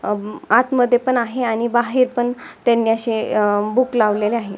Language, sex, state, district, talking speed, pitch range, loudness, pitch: Marathi, female, Maharashtra, Dhule, 145 wpm, 215-245 Hz, -18 LUFS, 235 Hz